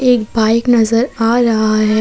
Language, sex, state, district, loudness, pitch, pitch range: Hindi, female, Jharkhand, Palamu, -13 LUFS, 225 Hz, 220-240 Hz